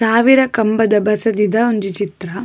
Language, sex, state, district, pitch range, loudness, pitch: Tulu, female, Karnataka, Dakshina Kannada, 210-230 Hz, -15 LUFS, 220 Hz